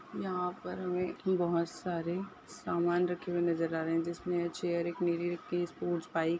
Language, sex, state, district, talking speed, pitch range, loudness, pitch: Hindi, female, Jharkhand, Sahebganj, 195 wpm, 170-180 Hz, -34 LUFS, 175 Hz